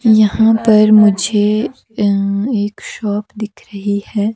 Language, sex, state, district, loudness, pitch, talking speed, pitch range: Hindi, female, Himachal Pradesh, Shimla, -14 LUFS, 210 Hz, 125 wpm, 205-220 Hz